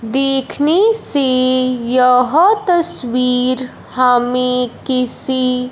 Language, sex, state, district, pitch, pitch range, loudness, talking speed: Hindi, male, Punjab, Fazilka, 255 Hz, 250-275 Hz, -12 LUFS, 65 wpm